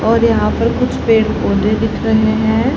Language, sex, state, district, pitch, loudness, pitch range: Hindi, female, Haryana, Rohtak, 220 Hz, -14 LUFS, 220-225 Hz